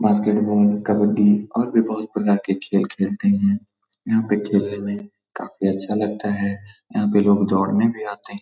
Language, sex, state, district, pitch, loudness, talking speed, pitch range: Hindi, male, Bihar, Saran, 105 Hz, -20 LUFS, 180 wpm, 100-110 Hz